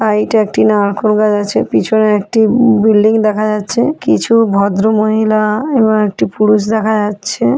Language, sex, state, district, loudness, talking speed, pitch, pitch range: Bengali, female, West Bengal, North 24 Parganas, -12 LUFS, 145 wpm, 215 Hz, 210-220 Hz